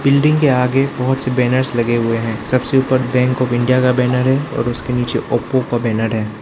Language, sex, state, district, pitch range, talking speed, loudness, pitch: Hindi, male, Arunachal Pradesh, Lower Dibang Valley, 120-130 Hz, 225 wpm, -16 LUFS, 125 Hz